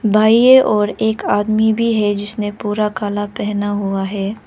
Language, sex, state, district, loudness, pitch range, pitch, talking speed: Hindi, female, Arunachal Pradesh, Lower Dibang Valley, -16 LUFS, 205-220 Hz, 210 Hz, 160 wpm